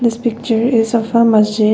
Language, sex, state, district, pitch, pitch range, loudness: English, female, Assam, Kamrup Metropolitan, 230 Hz, 220-235 Hz, -14 LUFS